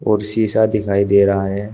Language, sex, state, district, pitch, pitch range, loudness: Hindi, male, Uttar Pradesh, Shamli, 105 Hz, 100-110 Hz, -14 LUFS